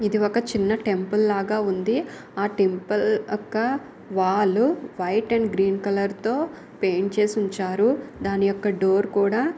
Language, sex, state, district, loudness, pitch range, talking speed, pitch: Telugu, female, Andhra Pradesh, Srikakulam, -23 LUFS, 195-230 Hz, 140 wpm, 205 Hz